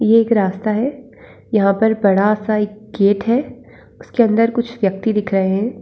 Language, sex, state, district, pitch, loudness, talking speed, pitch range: Hindi, female, Uttar Pradesh, Muzaffarnagar, 215 Hz, -17 LUFS, 185 wpm, 200-230 Hz